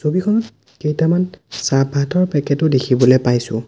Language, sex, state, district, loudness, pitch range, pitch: Assamese, male, Assam, Sonitpur, -17 LUFS, 130-170 Hz, 140 Hz